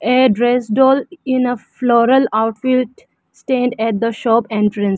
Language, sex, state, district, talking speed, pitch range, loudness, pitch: English, female, Arunachal Pradesh, Lower Dibang Valley, 145 wpm, 225-255 Hz, -15 LUFS, 245 Hz